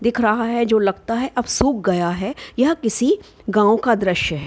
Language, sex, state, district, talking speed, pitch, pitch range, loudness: Hindi, female, Bihar, Gopalganj, 230 wpm, 225 Hz, 200-245 Hz, -19 LUFS